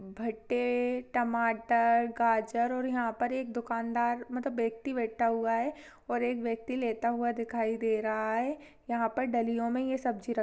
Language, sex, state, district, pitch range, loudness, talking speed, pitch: Hindi, female, Chhattisgarh, Sarguja, 230-245 Hz, -31 LUFS, 185 wpm, 235 Hz